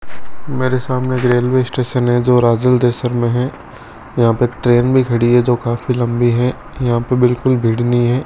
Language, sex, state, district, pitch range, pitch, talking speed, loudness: Hindi, male, Rajasthan, Bikaner, 120-125 Hz, 125 Hz, 205 wpm, -15 LUFS